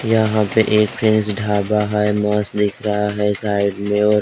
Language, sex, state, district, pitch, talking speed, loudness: Hindi, male, Maharashtra, Gondia, 105 Hz, 185 wpm, -18 LUFS